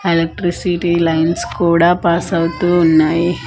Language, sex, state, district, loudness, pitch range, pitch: Telugu, female, Andhra Pradesh, Manyam, -14 LUFS, 165-175 Hz, 170 Hz